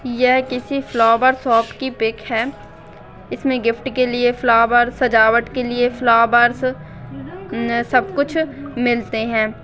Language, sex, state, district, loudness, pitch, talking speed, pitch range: Hindi, female, Bihar, Bhagalpur, -17 LUFS, 240 Hz, 125 wpm, 230-255 Hz